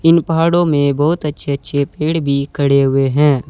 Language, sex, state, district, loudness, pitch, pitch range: Hindi, male, Uttar Pradesh, Saharanpur, -15 LUFS, 145 Hz, 140-165 Hz